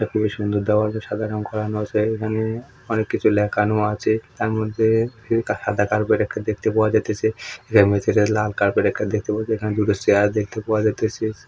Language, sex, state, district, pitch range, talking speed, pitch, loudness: Bengali, male, West Bengal, Purulia, 105-110 Hz, 165 wpm, 110 Hz, -21 LUFS